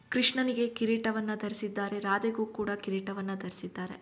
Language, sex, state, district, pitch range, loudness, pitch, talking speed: Kannada, female, Karnataka, Shimoga, 195-225 Hz, -32 LUFS, 210 Hz, 105 wpm